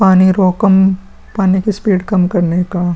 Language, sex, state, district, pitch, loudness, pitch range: Hindi, male, Bihar, Vaishali, 190 Hz, -13 LUFS, 180-195 Hz